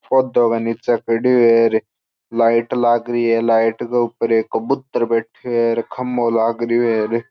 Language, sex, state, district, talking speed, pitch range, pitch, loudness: Marwari, male, Rajasthan, Churu, 150 wpm, 115-120 Hz, 115 Hz, -17 LUFS